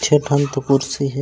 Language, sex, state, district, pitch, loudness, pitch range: Chhattisgarhi, male, Chhattisgarh, Raigarh, 140 Hz, -18 LUFS, 135-145 Hz